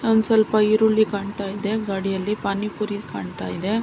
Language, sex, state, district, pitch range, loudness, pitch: Kannada, female, Karnataka, Mysore, 200-220 Hz, -22 LUFS, 210 Hz